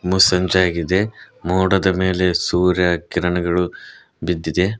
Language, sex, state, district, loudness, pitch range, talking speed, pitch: Kannada, male, Karnataka, Koppal, -18 LUFS, 90-95 Hz, 75 wpm, 90 Hz